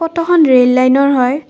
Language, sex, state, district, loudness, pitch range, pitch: Assamese, female, Assam, Kamrup Metropolitan, -11 LUFS, 255-330 Hz, 275 Hz